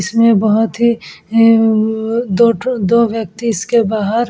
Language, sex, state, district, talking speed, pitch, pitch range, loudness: Hindi, female, Uttar Pradesh, Etah, 155 wpm, 225 Hz, 215-235 Hz, -13 LUFS